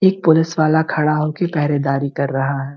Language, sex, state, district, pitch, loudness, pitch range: Hindi, female, Uttar Pradesh, Gorakhpur, 150 Hz, -17 LUFS, 140-160 Hz